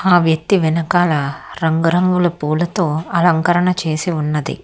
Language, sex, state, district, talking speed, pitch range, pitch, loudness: Telugu, female, Telangana, Hyderabad, 105 wpm, 160-180 Hz, 170 Hz, -16 LUFS